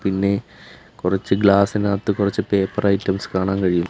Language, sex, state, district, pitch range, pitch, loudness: Malayalam, male, Kerala, Kollam, 95-100 Hz, 100 Hz, -20 LUFS